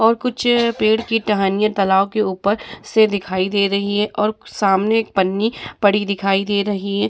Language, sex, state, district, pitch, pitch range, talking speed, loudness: Hindi, female, Bihar, Vaishali, 205 Hz, 195-220 Hz, 185 wpm, -18 LUFS